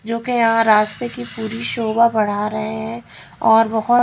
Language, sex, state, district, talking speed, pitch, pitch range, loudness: Hindi, female, Haryana, Rohtak, 195 wpm, 225 Hz, 220-235 Hz, -18 LUFS